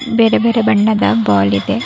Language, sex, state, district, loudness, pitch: Kannada, female, Karnataka, Raichur, -13 LUFS, 215 Hz